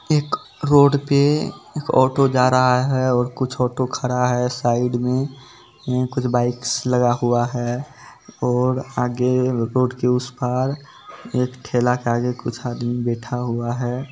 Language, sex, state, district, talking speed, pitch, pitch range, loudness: Maithili, male, Bihar, Supaul, 150 wpm, 125 Hz, 120-130 Hz, -20 LUFS